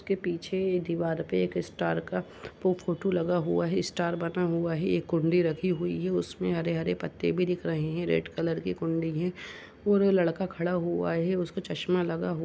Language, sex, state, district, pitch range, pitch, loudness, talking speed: Hindi, female, Uttar Pradesh, Budaun, 150-180 Hz, 170 Hz, -29 LUFS, 215 wpm